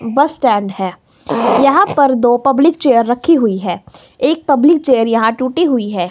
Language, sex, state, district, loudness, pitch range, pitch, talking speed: Hindi, female, Himachal Pradesh, Shimla, -13 LUFS, 225-285 Hz, 250 Hz, 175 wpm